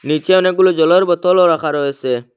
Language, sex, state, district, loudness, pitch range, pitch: Bengali, male, Assam, Hailakandi, -13 LUFS, 145-185 Hz, 165 Hz